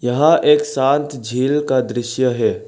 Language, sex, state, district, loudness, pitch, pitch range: Hindi, male, Arunachal Pradesh, Lower Dibang Valley, -17 LUFS, 135 Hz, 125-150 Hz